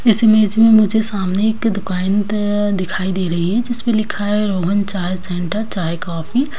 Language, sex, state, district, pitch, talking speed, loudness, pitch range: Hindi, female, Bihar, Kishanganj, 205 Hz, 180 wpm, -17 LUFS, 185-220 Hz